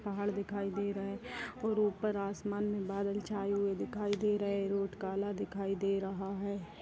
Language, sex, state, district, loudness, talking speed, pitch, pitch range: Kumaoni, female, Uttarakhand, Uttarkashi, -36 LUFS, 195 wpm, 200 Hz, 195-205 Hz